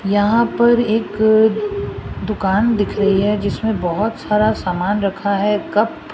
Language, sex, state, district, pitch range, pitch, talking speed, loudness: Hindi, female, Rajasthan, Jaipur, 200-220 Hz, 210 Hz, 145 wpm, -17 LUFS